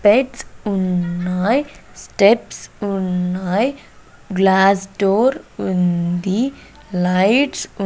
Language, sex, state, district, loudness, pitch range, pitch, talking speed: Telugu, female, Andhra Pradesh, Sri Satya Sai, -18 LUFS, 180-225 Hz, 195 Hz, 70 wpm